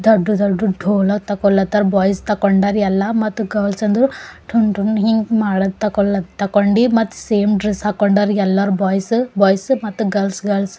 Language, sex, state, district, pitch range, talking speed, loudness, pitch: Kannada, female, Karnataka, Bidar, 200-215 Hz, 150 wpm, -16 LUFS, 205 Hz